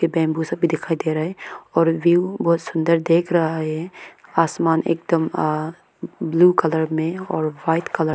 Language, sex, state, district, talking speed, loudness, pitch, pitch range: Hindi, female, Arunachal Pradesh, Lower Dibang Valley, 190 wpm, -20 LUFS, 165 Hz, 160-170 Hz